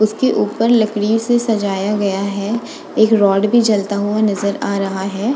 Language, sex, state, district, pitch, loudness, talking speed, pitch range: Hindi, female, Uttar Pradesh, Budaun, 210 Hz, -16 LUFS, 180 wpm, 200-225 Hz